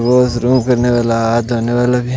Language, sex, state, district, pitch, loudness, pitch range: Hindi, male, Rajasthan, Bikaner, 120 Hz, -14 LUFS, 120-125 Hz